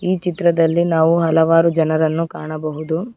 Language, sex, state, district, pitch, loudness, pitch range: Kannada, female, Karnataka, Bangalore, 165 Hz, -17 LUFS, 160-170 Hz